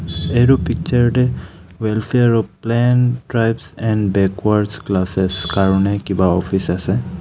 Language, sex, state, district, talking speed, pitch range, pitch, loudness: Assamese, male, Assam, Kamrup Metropolitan, 100 wpm, 95-120 Hz, 100 Hz, -17 LUFS